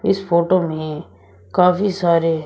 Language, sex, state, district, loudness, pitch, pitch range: Hindi, male, Uttar Pradesh, Shamli, -18 LUFS, 170 Hz, 155-185 Hz